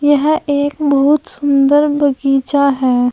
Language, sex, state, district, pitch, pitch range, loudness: Hindi, female, Uttar Pradesh, Saharanpur, 285 Hz, 275-290 Hz, -13 LUFS